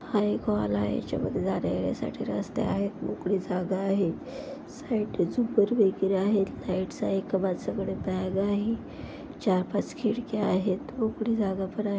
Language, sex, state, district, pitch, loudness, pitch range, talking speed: Marathi, female, Maharashtra, Pune, 200 Hz, -28 LUFS, 190-220 Hz, 150 wpm